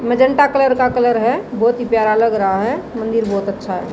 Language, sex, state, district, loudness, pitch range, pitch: Hindi, female, Haryana, Jhajjar, -16 LUFS, 215-250 Hz, 230 Hz